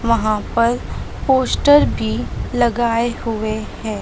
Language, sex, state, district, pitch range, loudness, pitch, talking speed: Hindi, female, Maharashtra, Mumbai Suburban, 215-235 Hz, -18 LUFS, 230 Hz, 105 wpm